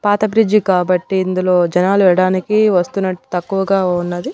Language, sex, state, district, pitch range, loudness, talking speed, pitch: Telugu, female, Andhra Pradesh, Annamaya, 180-195 Hz, -15 LUFS, 125 wpm, 185 Hz